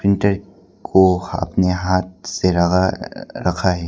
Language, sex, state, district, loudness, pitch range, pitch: Hindi, male, Arunachal Pradesh, Papum Pare, -18 LUFS, 90-95 Hz, 95 Hz